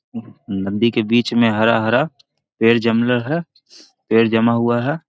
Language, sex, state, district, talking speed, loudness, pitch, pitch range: Magahi, male, Bihar, Jahanabad, 140 wpm, -17 LUFS, 115 Hz, 115-125 Hz